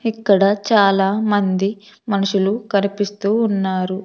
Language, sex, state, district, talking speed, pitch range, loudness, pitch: Telugu, female, Andhra Pradesh, Sri Satya Sai, 90 wpm, 195-210 Hz, -18 LUFS, 200 Hz